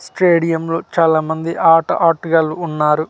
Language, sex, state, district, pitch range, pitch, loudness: Telugu, male, Andhra Pradesh, Manyam, 160-165 Hz, 165 Hz, -15 LUFS